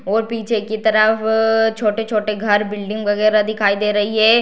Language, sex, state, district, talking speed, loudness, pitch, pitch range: Hindi, female, Bihar, Darbhanga, 165 wpm, -17 LUFS, 215 Hz, 210-225 Hz